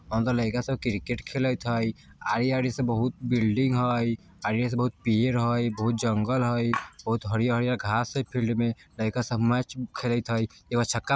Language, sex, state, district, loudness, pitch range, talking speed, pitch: Bajjika, male, Bihar, Vaishali, -27 LUFS, 115-125 Hz, 185 wpm, 120 Hz